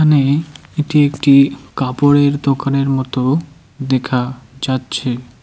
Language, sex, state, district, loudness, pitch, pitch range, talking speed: Bengali, male, West Bengal, Cooch Behar, -16 LUFS, 135 Hz, 130-145 Hz, 90 wpm